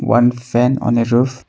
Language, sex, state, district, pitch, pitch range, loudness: English, male, Arunachal Pradesh, Longding, 120 Hz, 120-125 Hz, -15 LUFS